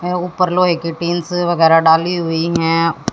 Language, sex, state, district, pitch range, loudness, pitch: Hindi, female, Haryana, Jhajjar, 165-175 Hz, -15 LUFS, 170 Hz